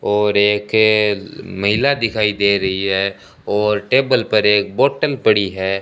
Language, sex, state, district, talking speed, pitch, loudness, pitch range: Hindi, male, Rajasthan, Bikaner, 155 wpm, 105 Hz, -16 LUFS, 100-105 Hz